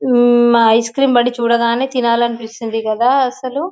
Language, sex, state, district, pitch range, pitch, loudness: Telugu, female, Telangana, Nalgonda, 235-255 Hz, 240 Hz, -14 LUFS